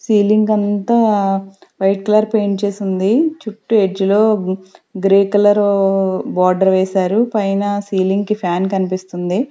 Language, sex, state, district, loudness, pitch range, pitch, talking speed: Telugu, female, Andhra Pradesh, Sri Satya Sai, -15 LUFS, 190-215 Hz, 200 Hz, 120 wpm